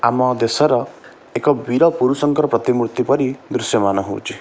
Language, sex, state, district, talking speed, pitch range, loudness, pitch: Odia, male, Odisha, Khordha, 135 wpm, 120-140 Hz, -17 LUFS, 125 Hz